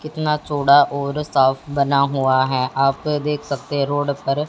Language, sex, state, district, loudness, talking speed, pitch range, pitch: Hindi, female, Haryana, Jhajjar, -19 LUFS, 175 wpm, 135-150 Hz, 140 Hz